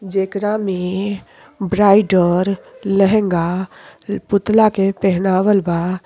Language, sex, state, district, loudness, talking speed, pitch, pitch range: Bhojpuri, female, Uttar Pradesh, Deoria, -16 LUFS, 80 wpm, 195 Hz, 185-200 Hz